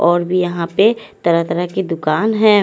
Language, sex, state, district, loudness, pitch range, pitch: Hindi, female, Haryana, Charkhi Dadri, -16 LUFS, 170-210 Hz, 175 Hz